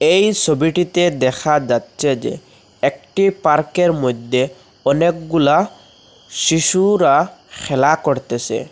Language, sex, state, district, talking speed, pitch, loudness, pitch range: Bengali, male, Assam, Hailakandi, 80 wpm, 160 Hz, -16 LUFS, 130-180 Hz